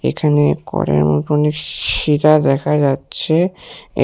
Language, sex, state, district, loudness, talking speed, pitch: Bengali, male, West Bengal, Alipurduar, -16 LUFS, 105 wpm, 145 Hz